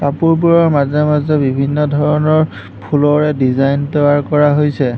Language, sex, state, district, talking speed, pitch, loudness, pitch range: Assamese, male, Assam, Hailakandi, 110 wpm, 150 Hz, -13 LUFS, 145-150 Hz